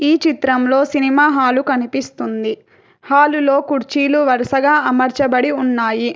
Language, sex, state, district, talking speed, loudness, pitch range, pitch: Telugu, female, Telangana, Hyderabad, 90 wpm, -15 LUFS, 255-290 Hz, 275 Hz